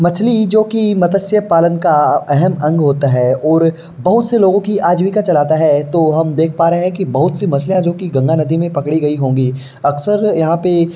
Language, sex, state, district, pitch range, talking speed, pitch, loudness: Hindi, male, Uttar Pradesh, Varanasi, 150-190 Hz, 220 wpm, 170 Hz, -13 LUFS